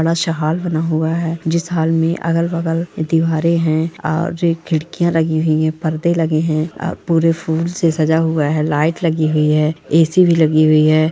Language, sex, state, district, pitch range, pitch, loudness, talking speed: Hindi, female, Bihar, Darbhanga, 155-165 Hz, 160 Hz, -16 LUFS, 200 wpm